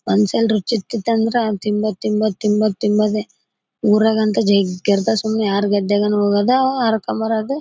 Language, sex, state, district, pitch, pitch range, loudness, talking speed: Kannada, female, Karnataka, Bellary, 215 Hz, 205-225 Hz, -17 LUFS, 125 wpm